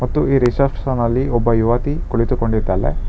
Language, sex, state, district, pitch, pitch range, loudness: Kannada, male, Karnataka, Bangalore, 120 Hz, 115-135 Hz, -18 LUFS